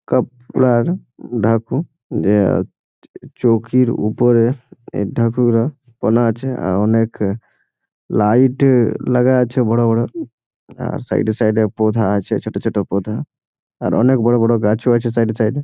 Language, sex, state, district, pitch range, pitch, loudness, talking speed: Bengali, male, West Bengal, Jhargram, 110-125 Hz, 115 Hz, -17 LUFS, 110 wpm